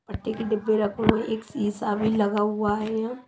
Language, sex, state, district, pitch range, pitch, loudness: Hindi, female, Chhattisgarh, Raipur, 210-220 Hz, 220 Hz, -25 LUFS